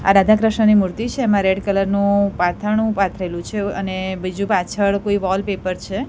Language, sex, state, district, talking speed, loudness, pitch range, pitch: Gujarati, female, Gujarat, Gandhinagar, 175 wpm, -18 LUFS, 190-210 Hz, 200 Hz